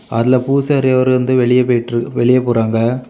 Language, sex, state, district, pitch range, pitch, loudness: Tamil, male, Tamil Nadu, Kanyakumari, 120-130 Hz, 125 Hz, -14 LUFS